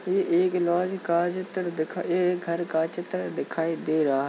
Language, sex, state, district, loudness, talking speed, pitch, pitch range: Hindi, male, Uttar Pradesh, Jalaun, -26 LUFS, 210 wpm, 175 Hz, 165-180 Hz